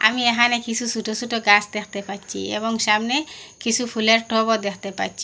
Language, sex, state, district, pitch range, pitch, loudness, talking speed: Bengali, female, Assam, Hailakandi, 205-235 Hz, 225 Hz, -21 LUFS, 170 wpm